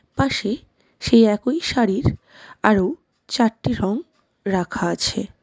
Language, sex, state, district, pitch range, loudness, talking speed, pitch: Bengali, female, West Bengal, Darjeeling, 195-260 Hz, -21 LUFS, 100 wpm, 220 Hz